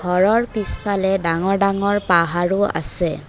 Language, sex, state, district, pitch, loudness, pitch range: Assamese, female, Assam, Kamrup Metropolitan, 195 Hz, -18 LUFS, 180-205 Hz